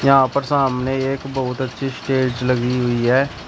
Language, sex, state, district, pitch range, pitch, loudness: Hindi, male, Uttar Pradesh, Shamli, 125-135 Hz, 130 Hz, -19 LUFS